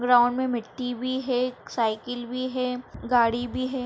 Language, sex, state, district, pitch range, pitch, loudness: Hindi, female, Bihar, Jahanabad, 245-255 Hz, 250 Hz, -26 LUFS